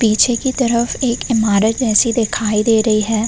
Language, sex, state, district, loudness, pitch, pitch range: Hindi, female, Uttar Pradesh, Varanasi, -15 LUFS, 225 Hz, 215-240 Hz